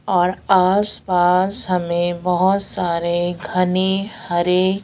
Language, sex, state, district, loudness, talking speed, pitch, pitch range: Hindi, female, Odisha, Sambalpur, -18 LUFS, 100 wpm, 180 Hz, 175-190 Hz